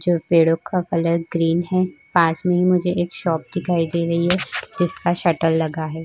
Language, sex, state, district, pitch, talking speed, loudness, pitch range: Hindi, female, Maharashtra, Chandrapur, 170 Hz, 200 wpm, -20 LUFS, 165-180 Hz